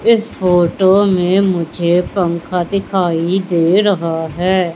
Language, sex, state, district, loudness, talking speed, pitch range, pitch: Hindi, female, Madhya Pradesh, Katni, -14 LUFS, 115 wpm, 170-195 Hz, 180 Hz